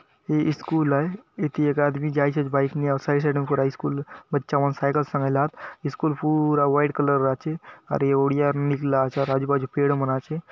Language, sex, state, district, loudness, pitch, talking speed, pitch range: Halbi, male, Chhattisgarh, Bastar, -23 LUFS, 145 Hz, 200 wpm, 140-150 Hz